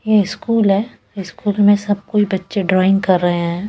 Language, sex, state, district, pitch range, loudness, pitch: Hindi, female, Bihar, West Champaran, 185-210 Hz, -16 LUFS, 200 Hz